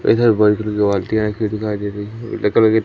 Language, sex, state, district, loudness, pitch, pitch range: Hindi, male, Madhya Pradesh, Umaria, -18 LUFS, 105 Hz, 105-110 Hz